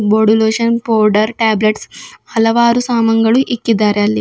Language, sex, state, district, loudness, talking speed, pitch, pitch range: Kannada, female, Karnataka, Bidar, -13 LUFS, 115 wpm, 225 Hz, 215-235 Hz